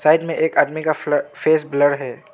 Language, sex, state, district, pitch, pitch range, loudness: Hindi, male, Arunachal Pradesh, Lower Dibang Valley, 155 Hz, 145-160 Hz, -19 LUFS